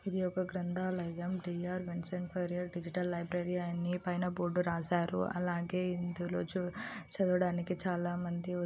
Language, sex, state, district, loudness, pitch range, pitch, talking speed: Telugu, female, Andhra Pradesh, Anantapur, -36 LUFS, 175-180 Hz, 180 Hz, 130 wpm